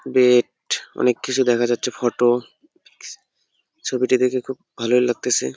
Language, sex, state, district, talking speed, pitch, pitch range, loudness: Bengali, male, West Bengal, Jalpaiguri, 95 wpm, 125 Hz, 120-130 Hz, -20 LUFS